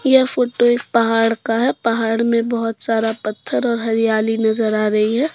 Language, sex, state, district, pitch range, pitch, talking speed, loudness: Hindi, female, Jharkhand, Deoghar, 225-240 Hz, 225 Hz, 190 wpm, -17 LUFS